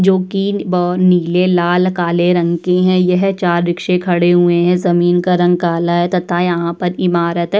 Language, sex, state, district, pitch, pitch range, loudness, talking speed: Hindi, female, Uttar Pradesh, Budaun, 175 Hz, 175-180 Hz, -14 LUFS, 195 wpm